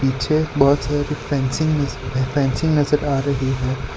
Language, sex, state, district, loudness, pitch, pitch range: Hindi, male, Gujarat, Valsad, -20 LUFS, 140 Hz, 130-145 Hz